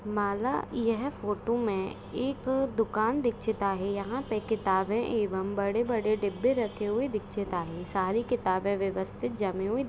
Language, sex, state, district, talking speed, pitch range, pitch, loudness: Hindi, female, Maharashtra, Pune, 145 wpm, 200-235 Hz, 215 Hz, -30 LUFS